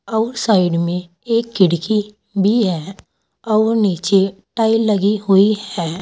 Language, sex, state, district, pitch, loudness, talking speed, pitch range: Hindi, female, Uttar Pradesh, Saharanpur, 205 Hz, -17 LUFS, 120 wpm, 185-220 Hz